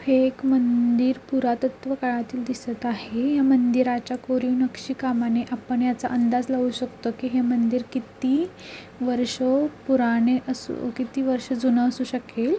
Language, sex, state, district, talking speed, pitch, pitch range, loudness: Marathi, female, Maharashtra, Pune, 140 wpm, 250 Hz, 245-260 Hz, -24 LUFS